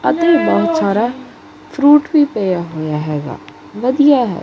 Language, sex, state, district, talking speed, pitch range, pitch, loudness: Punjabi, male, Punjab, Kapurthala, 135 wpm, 175-290 Hz, 245 Hz, -14 LUFS